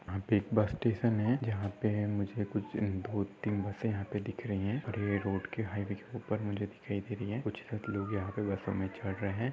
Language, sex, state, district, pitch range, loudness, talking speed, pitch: Hindi, male, Maharashtra, Solapur, 100-110 Hz, -35 LUFS, 240 wpm, 105 Hz